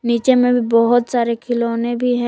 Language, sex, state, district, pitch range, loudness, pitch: Hindi, female, Jharkhand, Palamu, 235-245 Hz, -16 LUFS, 240 Hz